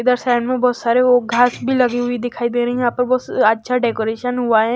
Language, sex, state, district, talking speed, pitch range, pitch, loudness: Hindi, female, Chhattisgarh, Raipur, 265 wpm, 235-250 Hz, 245 Hz, -17 LUFS